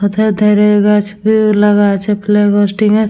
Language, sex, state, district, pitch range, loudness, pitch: Bengali, female, West Bengal, Dakshin Dinajpur, 205-210 Hz, -11 LUFS, 210 Hz